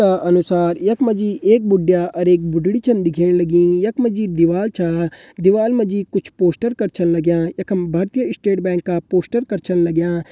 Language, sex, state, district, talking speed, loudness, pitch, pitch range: Hindi, male, Uttarakhand, Uttarkashi, 210 wpm, -17 LUFS, 180 Hz, 175-205 Hz